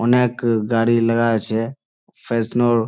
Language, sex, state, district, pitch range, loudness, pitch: Bengali, male, West Bengal, Malda, 115-120 Hz, -19 LUFS, 115 Hz